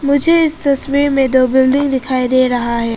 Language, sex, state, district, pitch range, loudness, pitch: Hindi, female, Arunachal Pradesh, Papum Pare, 255-280 Hz, -13 LUFS, 265 Hz